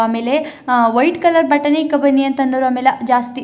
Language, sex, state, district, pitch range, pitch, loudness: Kannada, female, Karnataka, Chamarajanagar, 250-295 Hz, 270 Hz, -15 LUFS